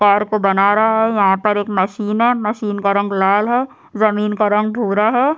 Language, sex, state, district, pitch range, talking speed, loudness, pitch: Hindi, male, Chhattisgarh, Sukma, 200-220 Hz, 220 wpm, -16 LUFS, 210 Hz